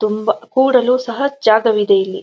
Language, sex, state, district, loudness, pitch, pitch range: Kannada, female, Karnataka, Dharwad, -15 LUFS, 225 Hz, 215-255 Hz